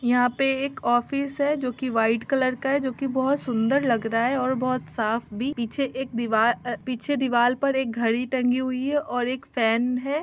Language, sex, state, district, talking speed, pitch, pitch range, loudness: Hindi, female, Bihar, Muzaffarpur, 225 wpm, 255 Hz, 235-270 Hz, -24 LUFS